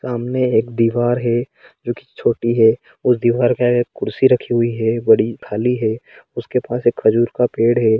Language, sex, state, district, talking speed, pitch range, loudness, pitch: Hindi, male, Jharkhand, Sahebganj, 185 wpm, 115-120 Hz, -17 LUFS, 120 Hz